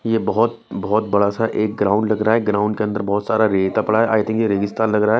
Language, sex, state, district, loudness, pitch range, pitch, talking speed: Hindi, male, Chhattisgarh, Raipur, -18 LUFS, 100-110 Hz, 110 Hz, 290 wpm